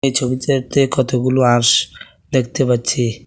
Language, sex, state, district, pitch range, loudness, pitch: Bengali, male, Tripura, West Tripura, 120-130 Hz, -16 LUFS, 130 Hz